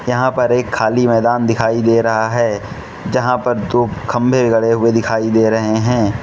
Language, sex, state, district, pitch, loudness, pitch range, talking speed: Hindi, male, Manipur, Imphal West, 115 Hz, -15 LUFS, 110-125 Hz, 185 wpm